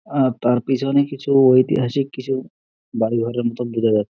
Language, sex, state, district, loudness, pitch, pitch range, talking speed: Bengali, male, West Bengal, Dakshin Dinajpur, -19 LUFS, 130 Hz, 120-135 Hz, 160 wpm